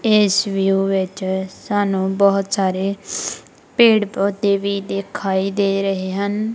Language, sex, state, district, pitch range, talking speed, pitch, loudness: Punjabi, female, Punjab, Kapurthala, 195-200 Hz, 120 wpm, 195 Hz, -19 LUFS